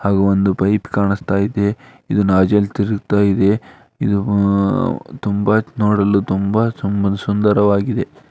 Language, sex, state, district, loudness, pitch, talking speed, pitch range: Kannada, male, Karnataka, Dharwad, -17 LUFS, 100 Hz, 110 wpm, 100-105 Hz